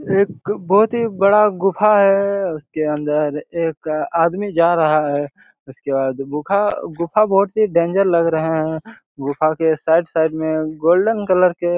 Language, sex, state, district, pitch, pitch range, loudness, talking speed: Hindi, male, Chhattisgarh, Raigarh, 170 Hz, 155-195 Hz, -17 LUFS, 155 wpm